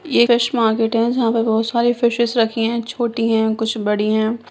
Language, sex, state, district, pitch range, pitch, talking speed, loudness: Hindi, female, Bihar, Sitamarhi, 225-235 Hz, 230 Hz, 210 wpm, -18 LUFS